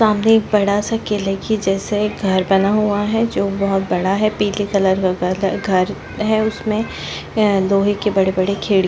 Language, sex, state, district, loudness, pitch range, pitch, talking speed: Hindi, female, Chhattisgarh, Bastar, -17 LUFS, 195-215 Hz, 200 Hz, 190 wpm